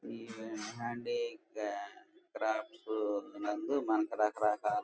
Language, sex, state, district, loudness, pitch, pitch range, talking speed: Telugu, male, Andhra Pradesh, Guntur, -36 LUFS, 110 Hz, 105-120 Hz, 85 wpm